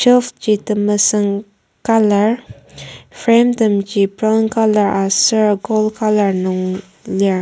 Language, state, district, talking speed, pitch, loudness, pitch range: Ao, Nagaland, Kohima, 105 wpm, 210 Hz, -15 LUFS, 200-220 Hz